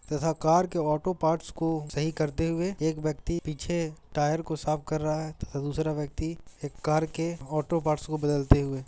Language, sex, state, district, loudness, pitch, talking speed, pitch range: Hindi, male, Bihar, Gaya, -29 LUFS, 155 Hz, 205 wpm, 150-165 Hz